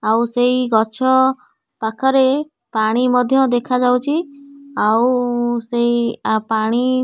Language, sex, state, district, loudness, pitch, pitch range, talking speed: Odia, female, Odisha, Nuapada, -17 LUFS, 245 Hz, 230-260 Hz, 95 wpm